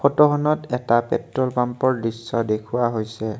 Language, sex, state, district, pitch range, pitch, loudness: Assamese, male, Assam, Kamrup Metropolitan, 115-130 Hz, 120 Hz, -22 LUFS